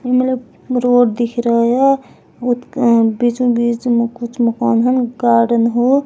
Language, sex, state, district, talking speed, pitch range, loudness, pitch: Hindi, female, Uttarakhand, Tehri Garhwal, 160 wpm, 235-250 Hz, -15 LUFS, 240 Hz